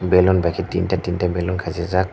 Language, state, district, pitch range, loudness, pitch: Kokborok, Tripura, Dhalai, 90-95 Hz, -20 LUFS, 90 Hz